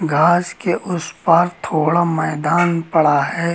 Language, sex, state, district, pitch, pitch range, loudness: Hindi, male, Uttar Pradesh, Lucknow, 170 Hz, 160-175 Hz, -17 LUFS